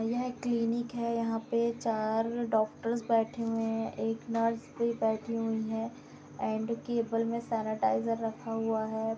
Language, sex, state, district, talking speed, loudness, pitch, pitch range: Hindi, female, Bihar, Gopalganj, 155 wpm, -32 LUFS, 230 Hz, 225-235 Hz